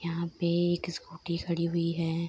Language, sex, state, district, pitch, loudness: Hindi, female, Bihar, Saharsa, 170 Hz, -31 LUFS